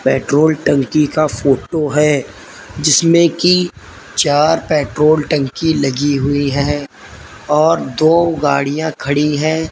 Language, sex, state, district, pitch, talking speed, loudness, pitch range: Hindi, male, Uttar Pradesh, Lalitpur, 150 Hz, 110 wpm, -14 LUFS, 140-155 Hz